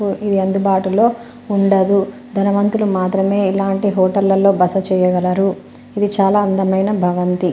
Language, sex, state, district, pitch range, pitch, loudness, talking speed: Telugu, female, Telangana, Nalgonda, 190-200 Hz, 195 Hz, -16 LUFS, 105 wpm